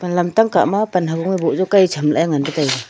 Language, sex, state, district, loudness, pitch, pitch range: Wancho, female, Arunachal Pradesh, Longding, -17 LUFS, 175 Hz, 150-190 Hz